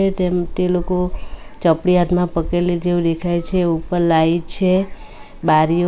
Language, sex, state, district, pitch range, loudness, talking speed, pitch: Gujarati, female, Gujarat, Valsad, 170-180 Hz, -17 LUFS, 130 wpm, 175 Hz